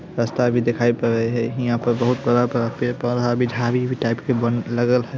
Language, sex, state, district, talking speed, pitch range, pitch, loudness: Hindi, male, Bihar, Samastipur, 175 wpm, 120-125 Hz, 120 Hz, -21 LUFS